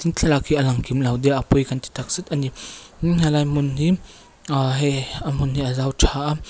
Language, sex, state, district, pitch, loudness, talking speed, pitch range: Mizo, female, Mizoram, Aizawl, 140 Hz, -21 LUFS, 240 wpm, 135-150 Hz